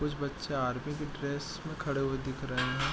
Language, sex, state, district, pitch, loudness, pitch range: Hindi, male, Bihar, East Champaran, 140 Hz, -34 LUFS, 130-150 Hz